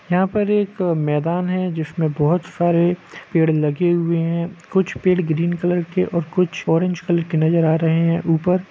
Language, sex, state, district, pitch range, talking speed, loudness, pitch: Hindi, male, Jharkhand, Sahebganj, 165-180 Hz, 195 wpm, -19 LUFS, 170 Hz